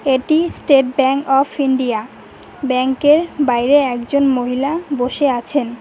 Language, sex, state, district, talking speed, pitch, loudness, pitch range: Bengali, female, West Bengal, Cooch Behar, 125 wpm, 270 Hz, -16 LUFS, 255-290 Hz